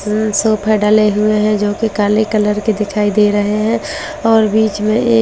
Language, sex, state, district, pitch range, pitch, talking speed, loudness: Hindi, female, Delhi, New Delhi, 210-220 Hz, 215 Hz, 240 wpm, -14 LUFS